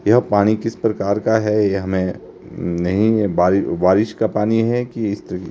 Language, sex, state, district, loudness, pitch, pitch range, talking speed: Hindi, male, Himachal Pradesh, Shimla, -18 LUFS, 105 Hz, 95-110 Hz, 175 wpm